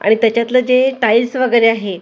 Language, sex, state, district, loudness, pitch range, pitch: Marathi, female, Maharashtra, Gondia, -13 LUFS, 225-255 Hz, 235 Hz